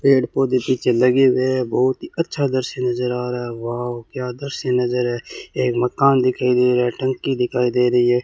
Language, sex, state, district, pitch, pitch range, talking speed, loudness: Hindi, male, Rajasthan, Bikaner, 125 Hz, 125-130 Hz, 220 wpm, -19 LUFS